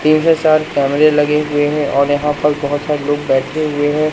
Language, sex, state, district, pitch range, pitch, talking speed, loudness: Hindi, male, Madhya Pradesh, Umaria, 145-155 Hz, 150 Hz, 220 wpm, -15 LUFS